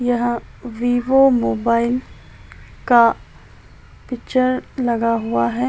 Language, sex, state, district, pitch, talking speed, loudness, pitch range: Hindi, female, Uttar Pradesh, Budaun, 240 Hz, 85 wpm, -18 LUFS, 230-250 Hz